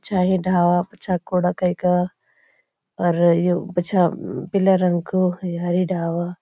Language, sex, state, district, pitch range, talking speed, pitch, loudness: Garhwali, female, Uttarakhand, Uttarkashi, 175-185 Hz, 140 wpm, 180 Hz, -20 LUFS